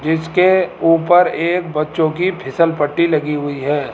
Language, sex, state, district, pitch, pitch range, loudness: Hindi, male, Rajasthan, Jaipur, 165 Hz, 150-175 Hz, -16 LUFS